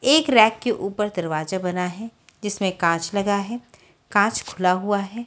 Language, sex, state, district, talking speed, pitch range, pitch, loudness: Hindi, female, Haryana, Charkhi Dadri, 170 wpm, 180-225 Hz, 200 Hz, -22 LUFS